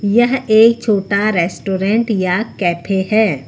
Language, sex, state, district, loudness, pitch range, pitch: Hindi, female, Uttar Pradesh, Lucknow, -15 LUFS, 190-220 Hz, 205 Hz